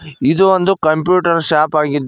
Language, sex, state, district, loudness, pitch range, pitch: Kannada, male, Karnataka, Koppal, -13 LUFS, 150-180 Hz, 160 Hz